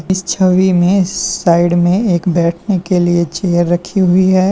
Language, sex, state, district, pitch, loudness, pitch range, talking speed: Hindi, male, Uttar Pradesh, Lalitpur, 180 Hz, -13 LUFS, 175-185 Hz, 175 wpm